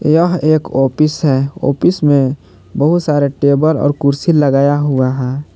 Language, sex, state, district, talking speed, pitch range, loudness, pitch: Hindi, male, Jharkhand, Palamu, 150 wpm, 140-155 Hz, -13 LUFS, 145 Hz